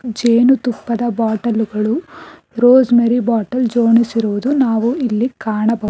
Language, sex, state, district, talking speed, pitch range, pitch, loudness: Kannada, female, Karnataka, Bangalore, 100 wpm, 225-245 Hz, 235 Hz, -15 LUFS